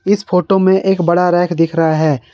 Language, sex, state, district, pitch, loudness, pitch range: Hindi, male, Jharkhand, Garhwa, 175 Hz, -13 LUFS, 165-190 Hz